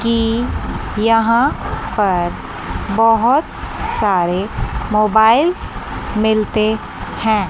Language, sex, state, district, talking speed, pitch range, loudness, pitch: Hindi, female, Chandigarh, Chandigarh, 65 wpm, 210-225 Hz, -16 LUFS, 220 Hz